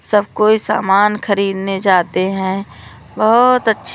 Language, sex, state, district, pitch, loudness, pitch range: Hindi, female, Madhya Pradesh, Umaria, 200 Hz, -14 LUFS, 195-215 Hz